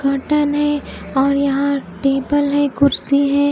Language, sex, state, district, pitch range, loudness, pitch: Hindi, female, Odisha, Khordha, 275-285 Hz, -17 LUFS, 280 Hz